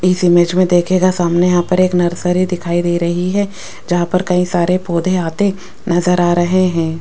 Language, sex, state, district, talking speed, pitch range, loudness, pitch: Hindi, female, Rajasthan, Jaipur, 195 wpm, 175-185 Hz, -14 LUFS, 180 Hz